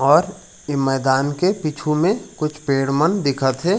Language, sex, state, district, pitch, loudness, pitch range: Chhattisgarhi, male, Chhattisgarh, Raigarh, 150 Hz, -19 LUFS, 135-180 Hz